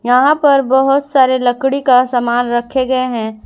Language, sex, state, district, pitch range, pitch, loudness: Hindi, female, Jharkhand, Garhwa, 245-270 Hz, 255 Hz, -13 LUFS